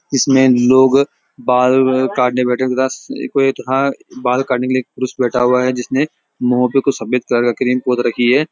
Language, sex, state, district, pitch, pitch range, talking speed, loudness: Hindi, male, Uttarakhand, Uttarkashi, 130 Hz, 125-130 Hz, 195 wpm, -15 LUFS